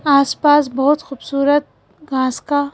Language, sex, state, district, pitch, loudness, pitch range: Hindi, female, Madhya Pradesh, Bhopal, 280 Hz, -16 LUFS, 275-295 Hz